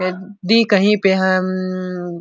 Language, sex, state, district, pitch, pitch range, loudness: Hindi, female, Uttar Pradesh, Etah, 185 Hz, 185-200 Hz, -16 LUFS